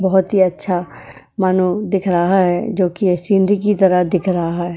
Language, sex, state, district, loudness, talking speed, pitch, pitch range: Hindi, female, Uttar Pradesh, Etah, -16 LUFS, 190 wpm, 185 Hz, 180-195 Hz